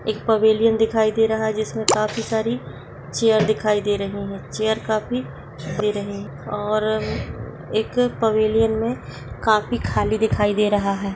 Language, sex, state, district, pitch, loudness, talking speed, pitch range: Hindi, female, Rajasthan, Nagaur, 215 Hz, -21 LUFS, 155 wpm, 210-220 Hz